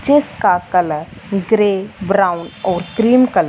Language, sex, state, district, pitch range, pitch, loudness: Hindi, female, Punjab, Fazilka, 180-225 Hz, 195 Hz, -16 LUFS